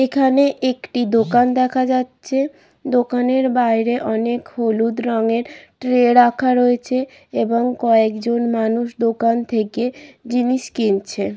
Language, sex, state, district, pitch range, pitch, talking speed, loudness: Bengali, female, West Bengal, Kolkata, 230-255 Hz, 245 Hz, 105 wpm, -18 LUFS